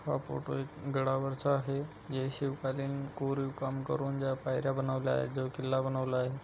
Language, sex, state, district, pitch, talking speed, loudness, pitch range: Marathi, male, Maharashtra, Dhule, 135 Hz, 165 wpm, -34 LUFS, 130-135 Hz